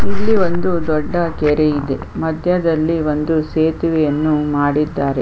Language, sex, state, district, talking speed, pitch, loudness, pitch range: Kannada, female, Karnataka, Chamarajanagar, 105 wpm, 155 Hz, -17 LUFS, 150-165 Hz